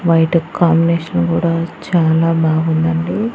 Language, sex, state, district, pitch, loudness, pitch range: Telugu, female, Andhra Pradesh, Annamaya, 165 Hz, -15 LUFS, 160-170 Hz